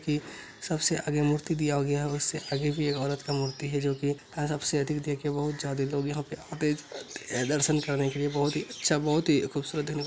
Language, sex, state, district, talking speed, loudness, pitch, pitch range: Maithili, male, Bihar, Araria, 200 wpm, -29 LUFS, 145 Hz, 145-150 Hz